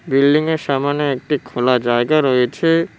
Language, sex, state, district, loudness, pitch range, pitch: Bengali, male, West Bengal, Cooch Behar, -17 LUFS, 125-150 Hz, 140 Hz